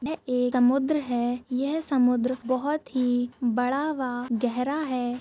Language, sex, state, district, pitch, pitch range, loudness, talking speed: Hindi, female, Goa, North and South Goa, 250 Hz, 245-275 Hz, -26 LUFS, 140 wpm